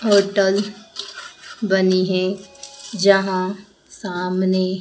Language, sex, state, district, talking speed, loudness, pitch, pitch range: Hindi, female, Madhya Pradesh, Dhar, 60 wpm, -19 LUFS, 195 Hz, 185-205 Hz